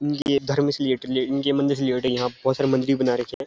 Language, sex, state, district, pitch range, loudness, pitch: Hindi, male, Uttarakhand, Uttarkashi, 130-140 Hz, -23 LUFS, 135 Hz